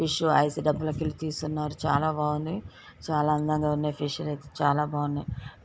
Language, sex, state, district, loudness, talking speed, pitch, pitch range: Telugu, female, Andhra Pradesh, Guntur, -28 LUFS, 150 wpm, 150 Hz, 145-155 Hz